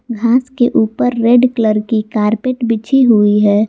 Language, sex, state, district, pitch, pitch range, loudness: Hindi, female, Jharkhand, Garhwa, 230 Hz, 215-245 Hz, -13 LUFS